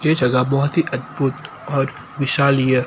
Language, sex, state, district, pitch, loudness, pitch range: Hindi, male, Gujarat, Gandhinagar, 140 Hz, -19 LUFS, 130-145 Hz